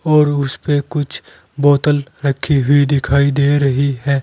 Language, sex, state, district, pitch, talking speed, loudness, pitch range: Hindi, male, Uttar Pradesh, Saharanpur, 140 Hz, 155 wpm, -15 LUFS, 140-145 Hz